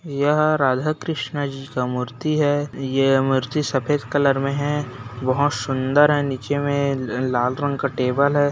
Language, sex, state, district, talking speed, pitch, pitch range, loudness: Hindi, male, Bihar, Bhagalpur, 155 wpm, 140 Hz, 130-145 Hz, -21 LUFS